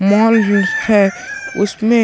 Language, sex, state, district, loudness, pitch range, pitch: Hindi, male, Chhattisgarh, Sukma, -14 LUFS, 200-230 Hz, 215 Hz